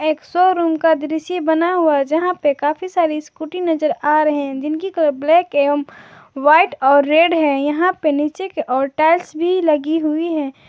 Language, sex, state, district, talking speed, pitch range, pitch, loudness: Hindi, male, Jharkhand, Garhwa, 185 wpm, 295-340 Hz, 310 Hz, -17 LUFS